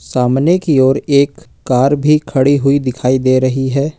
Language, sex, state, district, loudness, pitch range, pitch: Hindi, male, Jharkhand, Ranchi, -13 LUFS, 130-145 Hz, 135 Hz